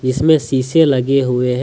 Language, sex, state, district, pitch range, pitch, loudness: Hindi, male, Jharkhand, Deoghar, 130-150 Hz, 130 Hz, -14 LUFS